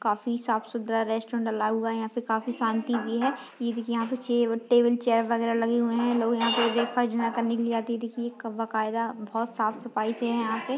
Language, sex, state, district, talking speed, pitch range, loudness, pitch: Hindi, female, Chhattisgarh, Kabirdham, 250 wpm, 225-240 Hz, -27 LUFS, 230 Hz